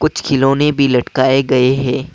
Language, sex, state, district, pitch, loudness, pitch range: Hindi, male, Assam, Kamrup Metropolitan, 135 Hz, -14 LUFS, 130-140 Hz